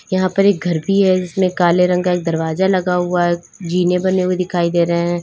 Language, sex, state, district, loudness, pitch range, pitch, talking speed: Hindi, female, Uttar Pradesh, Lalitpur, -16 LUFS, 175-185 Hz, 180 Hz, 250 wpm